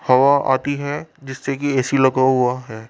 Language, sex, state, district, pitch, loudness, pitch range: Hindi, male, Rajasthan, Jaipur, 130 Hz, -18 LUFS, 130-140 Hz